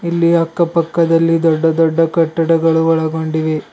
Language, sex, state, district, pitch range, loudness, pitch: Kannada, male, Karnataka, Bidar, 160-170 Hz, -14 LUFS, 165 Hz